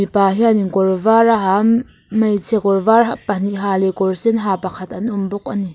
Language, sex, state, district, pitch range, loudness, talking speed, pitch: Mizo, female, Mizoram, Aizawl, 190-220 Hz, -16 LUFS, 210 wpm, 200 Hz